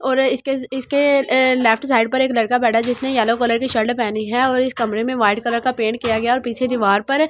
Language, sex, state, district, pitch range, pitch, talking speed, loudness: Hindi, female, Delhi, New Delhi, 230-260 Hz, 245 Hz, 290 wpm, -18 LUFS